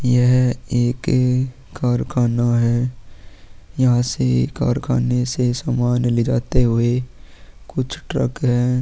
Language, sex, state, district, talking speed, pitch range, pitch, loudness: Hindi, male, Uttarakhand, Tehri Garhwal, 100 wpm, 120-125 Hz, 125 Hz, -19 LUFS